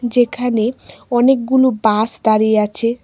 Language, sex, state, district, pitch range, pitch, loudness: Bengali, female, Tripura, West Tripura, 220-250 Hz, 235 Hz, -15 LUFS